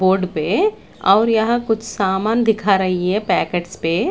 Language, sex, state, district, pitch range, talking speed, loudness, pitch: Hindi, female, Chandigarh, Chandigarh, 185-225 Hz, 160 wpm, -18 LUFS, 195 Hz